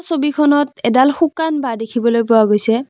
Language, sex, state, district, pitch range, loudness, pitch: Assamese, female, Assam, Kamrup Metropolitan, 230-295 Hz, -15 LUFS, 260 Hz